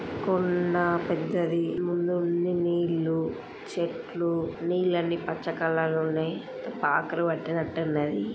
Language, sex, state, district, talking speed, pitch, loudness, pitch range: Telugu, female, Andhra Pradesh, Srikakulam, 85 wpm, 170 Hz, -28 LUFS, 165-175 Hz